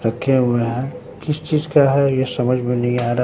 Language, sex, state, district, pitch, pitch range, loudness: Hindi, male, Bihar, Katihar, 125 Hz, 120-140 Hz, -18 LUFS